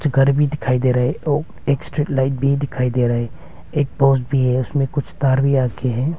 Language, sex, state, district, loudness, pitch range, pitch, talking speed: Hindi, male, Arunachal Pradesh, Longding, -19 LUFS, 125-145 Hz, 135 Hz, 250 wpm